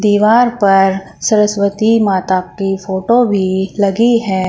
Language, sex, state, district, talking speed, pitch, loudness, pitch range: Hindi, female, Uttar Pradesh, Shamli, 120 wpm, 200 Hz, -13 LUFS, 190-220 Hz